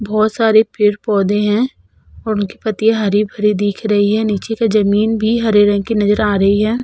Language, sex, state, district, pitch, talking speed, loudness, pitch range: Hindi, female, Uttar Pradesh, Budaun, 210 Hz, 200 wpm, -15 LUFS, 205-220 Hz